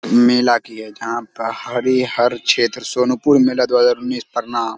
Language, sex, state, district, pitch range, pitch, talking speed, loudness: Hindi, male, Bihar, Samastipur, 115-125 Hz, 120 Hz, 165 wpm, -17 LUFS